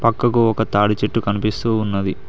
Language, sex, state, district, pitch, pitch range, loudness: Telugu, male, Telangana, Mahabubabad, 105 Hz, 105-115 Hz, -18 LUFS